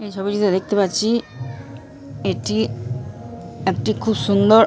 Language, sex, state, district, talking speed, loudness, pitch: Bengali, female, West Bengal, Purulia, 115 wpm, -20 LUFS, 130 Hz